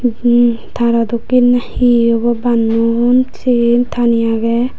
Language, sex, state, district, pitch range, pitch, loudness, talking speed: Chakma, female, Tripura, Unakoti, 230-245 Hz, 235 Hz, -13 LUFS, 115 wpm